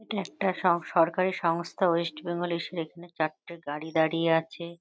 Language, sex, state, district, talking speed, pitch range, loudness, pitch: Bengali, female, West Bengal, North 24 Parganas, 175 wpm, 165-175 Hz, -28 LUFS, 170 Hz